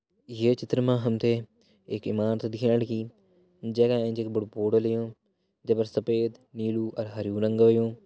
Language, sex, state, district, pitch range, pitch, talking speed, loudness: Hindi, male, Uttarakhand, Uttarkashi, 110-120 Hz, 115 Hz, 155 wpm, -27 LUFS